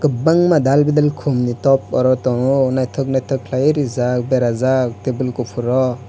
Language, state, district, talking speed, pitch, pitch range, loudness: Kokborok, Tripura, West Tripura, 140 wpm, 130 Hz, 125-135 Hz, -17 LUFS